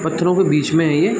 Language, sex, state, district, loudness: Hindi, male, Chhattisgarh, Raigarh, -16 LUFS